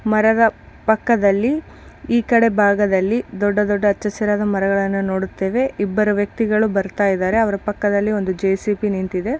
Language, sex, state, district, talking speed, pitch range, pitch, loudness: Kannada, female, Karnataka, Bijapur, 120 wpm, 195-220 Hz, 205 Hz, -18 LUFS